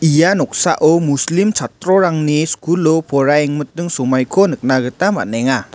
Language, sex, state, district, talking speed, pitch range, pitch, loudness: Garo, male, Meghalaya, West Garo Hills, 105 wpm, 140-175 Hz, 155 Hz, -15 LUFS